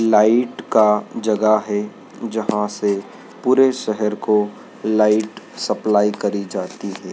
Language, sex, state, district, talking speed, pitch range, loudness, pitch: Hindi, male, Madhya Pradesh, Dhar, 120 wpm, 105-110 Hz, -19 LUFS, 105 Hz